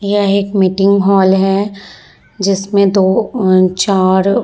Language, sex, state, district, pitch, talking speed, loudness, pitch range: Hindi, female, Bihar, Vaishali, 195 Hz, 135 wpm, -12 LUFS, 190-200 Hz